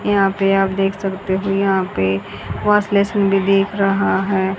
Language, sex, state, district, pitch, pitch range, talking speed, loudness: Hindi, female, Haryana, Charkhi Dadri, 195 Hz, 190-195 Hz, 155 wpm, -17 LUFS